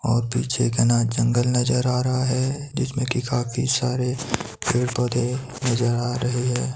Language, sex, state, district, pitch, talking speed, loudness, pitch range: Hindi, male, Himachal Pradesh, Shimla, 125 Hz, 160 wpm, -23 LUFS, 120-130 Hz